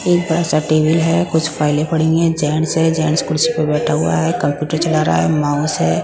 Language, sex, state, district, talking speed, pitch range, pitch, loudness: Hindi, female, Punjab, Pathankot, 230 wpm, 150-160 Hz, 155 Hz, -16 LUFS